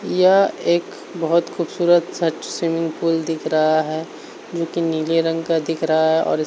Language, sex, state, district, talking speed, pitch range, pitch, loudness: Hindi, male, Uttar Pradesh, Varanasi, 195 wpm, 160-170 Hz, 165 Hz, -19 LUFS